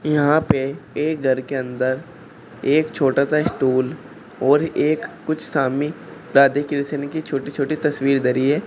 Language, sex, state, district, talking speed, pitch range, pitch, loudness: Hindi, male, Uttar Pradesh, Shamli, 150 wpm, 135-150 Hz, 140 Hz, -20 LUFS